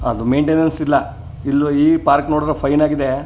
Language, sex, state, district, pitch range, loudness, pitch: Kannada, male, Karnataka, Chamarajanagar, 135-150 Hz, -16 LUFS, 145 Hz